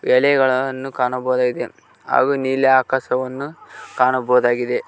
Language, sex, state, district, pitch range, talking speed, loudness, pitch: Kannada, male, Karnataka, Koppal, 125-135 Hz, 75 wpm, -18 LUFS, 130 Hz